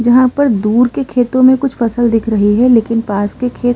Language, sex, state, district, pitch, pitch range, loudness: Hindi, female, Uttar Pradesh, Muzaffarnagar, 240 Hz, 225-255 Hz, -12 LUFS